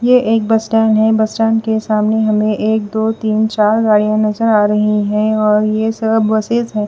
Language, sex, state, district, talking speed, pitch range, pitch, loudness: Hindi, female, Bihar, West Champaran, 210 wpm, 215-225 Hz, 220 Hz, -14 LUFS